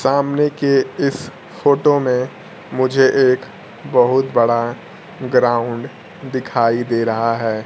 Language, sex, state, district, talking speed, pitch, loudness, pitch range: Hindi, male, Bihar, Kaimur, 110 wpm, 130 Hz, -17 LUFS, 120-140 Hz